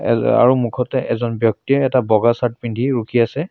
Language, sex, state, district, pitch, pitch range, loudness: Assamese, male, Assam, Sonitpur, 120 Hz, 115-130 Hz, -17 LUFS